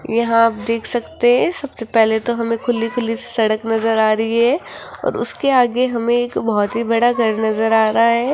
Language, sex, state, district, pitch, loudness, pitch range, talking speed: Hindi, female, Rajasthan, Jaipur, 230 Hz, -17 LUFS, 225-240 Hz, 215 wpm